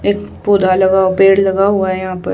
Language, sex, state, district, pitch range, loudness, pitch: Hindi, female, Haryana, Charkhi Dadri, 190-200 Hz, -13 LUFS, 190 Hz